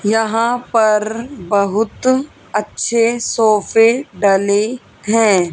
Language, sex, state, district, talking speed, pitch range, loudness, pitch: Hindi, female, Haryana, Jhajjar, 75 wpm, 205-235 Hz, -15 LUFS, 225 Hz